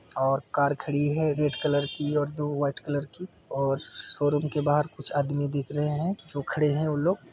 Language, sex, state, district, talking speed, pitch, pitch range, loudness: Hindi, male, Chhattisgarh, Bilaspur, 215 wpm, 145 Hz, 145-150 Hz, -28 LUFS